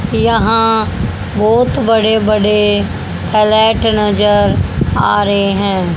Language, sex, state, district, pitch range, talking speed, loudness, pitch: Hindi, female, Haryana, Jhajjar, 205-220 Hz, 90 wpm, -12 LUFS, 215 Hz